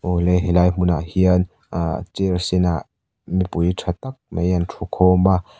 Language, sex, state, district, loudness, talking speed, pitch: Mizo, male, Mizoram, Aizawl, -20 LUFS, 170 wpm, 90 Hz